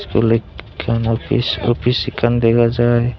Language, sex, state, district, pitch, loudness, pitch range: Chakma, male, Tripura, Dhalai, 115 Hz, -17 LUFS, 115-120 Hz